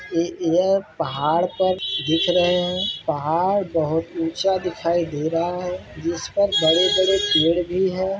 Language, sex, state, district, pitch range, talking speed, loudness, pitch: Hindi, male, Bihar, Kishanganj, 165-185 Hz, 155 wpm, -21 LUFS, 175 Hz